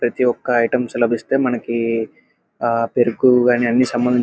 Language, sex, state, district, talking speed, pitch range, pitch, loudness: Telugu, male, Andhra Pradesh, Krishna, 130 wpm, 115-125 Hz, 120 Hz, -18 LUFS